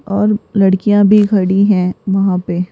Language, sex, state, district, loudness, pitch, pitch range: Hindi, female, Rajasthan, Jaipur, -13 LUFS, 195 Hz, 185-205 Hz